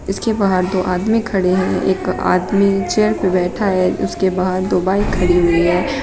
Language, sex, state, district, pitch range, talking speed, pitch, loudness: Hindi, female, Uttar Pradesh, Shamli, 180-195 Hz, 190 wpm, 185 Hz, -16 LUFS